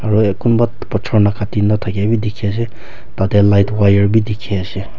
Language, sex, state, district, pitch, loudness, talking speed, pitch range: Nagamese, male, Nagaland, Kohima, 105 Hz, -15 LUFS, 170 wpm, 100-110 Hz